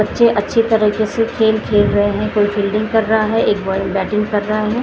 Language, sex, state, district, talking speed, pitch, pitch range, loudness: Hindi, female, Maharashtra, Gondia, 225 wpm, 210 Hz, 205-220 Hz, -16 LUFS